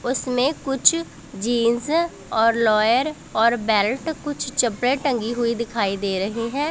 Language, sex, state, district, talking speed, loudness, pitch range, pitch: Hindi, female, Punjab, Pathankot, 135 wpm, -21 LUFS, 225-275 Hz, 240 Hz